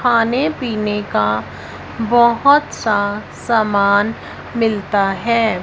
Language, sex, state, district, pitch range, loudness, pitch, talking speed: Hindi, female, Punjab, Fazilka, 205-235 Hz, -16 LUFS, 220 Hz, 85 wpm